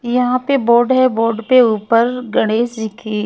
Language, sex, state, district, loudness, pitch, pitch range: Hindi, female, Chhattisgarh, Raipur, -15 LUFS, 235 Hz, 225-250 Hz